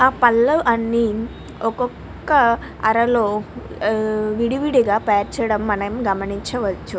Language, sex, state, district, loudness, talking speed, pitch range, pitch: Telugu, female, Andhra Pradesh, Krishna, -19 LUFS, 70 wpm, 210-240 Hz, 225 Hz